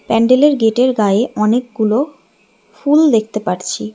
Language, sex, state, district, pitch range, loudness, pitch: Bengali, female, West Bengal, Alipurduar, 215-255 Hz, -14 LUFS, 225 Hz